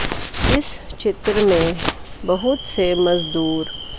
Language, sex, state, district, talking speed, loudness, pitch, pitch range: Hindi, female, Chandigarh, Chandigarh, 90 wpm, -19 LUFS, 180 Hz, 165-205 Hz